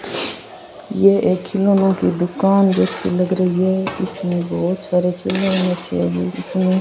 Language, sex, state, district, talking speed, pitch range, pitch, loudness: Rajasthani, female, Rajasthan, Churu, 150 wpm, 180-195 Hz, 185 Hz, -18 LUFS